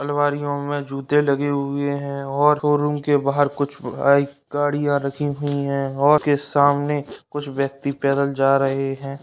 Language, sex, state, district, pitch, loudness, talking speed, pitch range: Hindi, male, Bihar, Purnia, 140 Hz, -21 LUFS, 155 wpm, 140-145 Hz